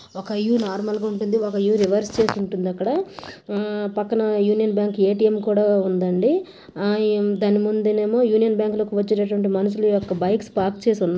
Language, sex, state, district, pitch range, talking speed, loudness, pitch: Telugu, female, Andhra Pradesh, Anantapur, 200-215 Hz, 150 wpm, -21 LUFS, 210 Hz